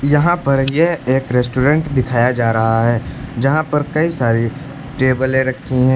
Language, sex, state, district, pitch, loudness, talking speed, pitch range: Hindi, male, Uttar Pradesh, Lucknow, 130 Hz, -16 LUFS, 160 wpm, 125-145 Hz